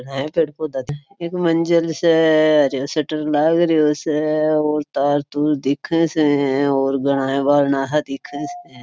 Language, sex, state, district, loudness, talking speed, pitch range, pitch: Marwari, female, Rajasthan, Churu, -18 LUFS, 130 wpm, 140-160 Hz, 150 Hz